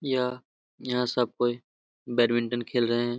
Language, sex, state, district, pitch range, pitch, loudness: Hindi, male, Jharkhand, Jamtara, 120-125 Hz, 120 Hz, -27 LUFS